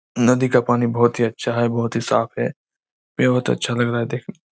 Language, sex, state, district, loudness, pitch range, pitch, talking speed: Hindi, male, Chhattisgarh, Raigarh, -20 LUFS, 120-125 Hz, 120 Hz, 240 wpm